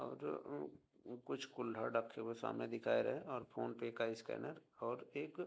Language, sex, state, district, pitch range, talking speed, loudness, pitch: Hindi, male, Bihar, Begusarai, 110-130 Hz, 200 wpm, -44 LUFS, 115 Hz